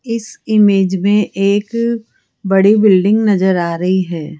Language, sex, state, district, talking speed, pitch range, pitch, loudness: Hindi, female, Rajasthan, Jaipur, 135 wpm, 190-215 Hz, 200 Hz, -13 LUFS